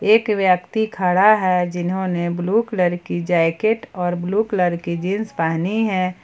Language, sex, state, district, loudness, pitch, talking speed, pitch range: Hindi, female, Jharkhand, Ranchi, -19 LUFS, 185 Hz, 145 wpm, 175-215 Hz